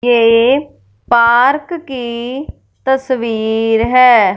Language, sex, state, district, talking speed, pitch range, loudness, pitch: Hindi, female, Punjab, Fazilka, 70 wpm, 230-265 Hz, -13 LUFS, 240 Hz